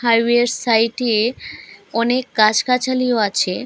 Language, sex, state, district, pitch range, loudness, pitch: Bengali, female, Assam, Hailakandi, 225-250 Hz, -17 LUFS, 235 Hz